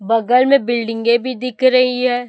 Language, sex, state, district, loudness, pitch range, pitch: Hindi, female, Chhattisgarh, Raipur, -15 LUFS, 235-255 Hz, 250 Hz